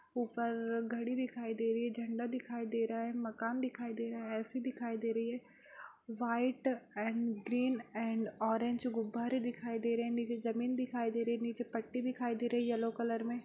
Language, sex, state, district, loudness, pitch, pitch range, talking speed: Hindi, female, Bihar, Saharsa, -37 LUFS, 235 Hz, 230-240 Hz, 205 wpm